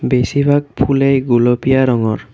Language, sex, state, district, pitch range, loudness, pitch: Assamese, male, Assam, Kamrup Metropolitan, 120-135 Hz, -14 LUFS, 130 Hz